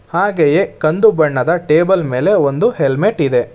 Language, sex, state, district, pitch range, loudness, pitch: Kannada, male, Karnataka, Bangalore, 140-180 Hz, -14 LUFS, 155 Hz